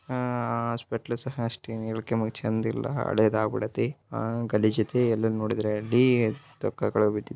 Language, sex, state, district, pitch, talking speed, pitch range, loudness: Kannada, male, Karnataka, Bellary, 115 Hz, 65 wpm, 110-120 Hz, -27 LUFS